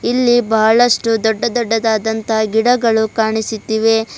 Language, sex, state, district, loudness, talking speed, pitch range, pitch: Kannada, female, Karnataka, Bidar, -15 LUFS, 85 wpm, 220-230 Hz, 225 Hz